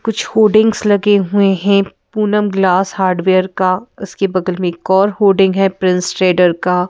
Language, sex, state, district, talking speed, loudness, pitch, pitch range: Hindi, female, Madhya Pradesh, Bhopal, 165 wpm, -13 LUFS, 195 Hz, 185-205 Hz